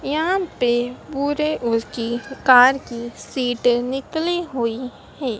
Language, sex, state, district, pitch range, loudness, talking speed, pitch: Hindi, female, Madhya Pradesh, Dhar, 240-290 Hz, -20 LUFS, 120 wpm, 250 Hz